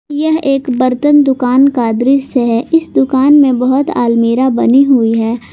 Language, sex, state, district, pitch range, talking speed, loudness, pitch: Hindi, female, Jharkhand, Garhwa, 245-280 Hz, 165 wpm, -11 LUFS, 265 Hz